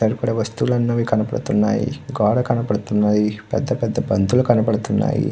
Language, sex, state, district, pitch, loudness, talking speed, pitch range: Telugu, male, Andhra Pradesh, Krishna, 110 Hz, -19 LUFS, 90 wpm, 105-120 Hz